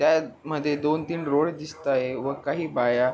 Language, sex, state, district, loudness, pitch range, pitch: Marathi, male, Maharashtra, Pune, -26 LUFS, 135-160 Hz, 150 Hz